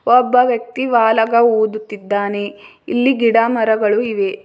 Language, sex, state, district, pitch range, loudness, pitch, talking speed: Kannada, female, Karnataka, Bidar, 215-240 Hz, -15 LUFS, 225 Hz, 95 wpm